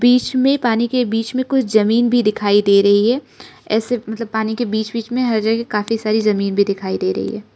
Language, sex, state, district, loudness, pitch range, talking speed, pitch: Hindi, female, Arunachal Pradesh, Lower Dibang Valley, -17 LUFS, 210-240 Hz, 240 wpm, 220 Hz